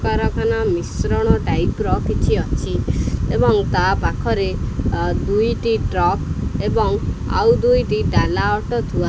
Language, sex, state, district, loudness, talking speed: Odia, male, Odisha, Khordha, -19 LUFS, 125 wpm